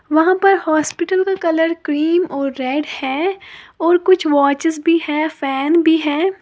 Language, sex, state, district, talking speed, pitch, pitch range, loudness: Hindi, female, Uttar Pradesh, Lalitpur, 160 wpm, 325 Hz, 295-355 Hz, -16 LUFS